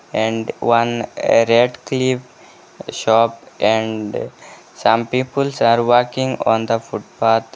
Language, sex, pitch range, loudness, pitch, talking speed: English, male, 115-125 Hz, -17 LUFS, 115 Hz, 95 wpm